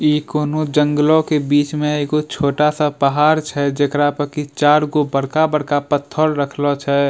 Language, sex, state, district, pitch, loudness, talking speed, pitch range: Angika, male, Bihar, Bhagalpur, 150 Hz, -17 LUFS, 160 wpm, 145-150 Hz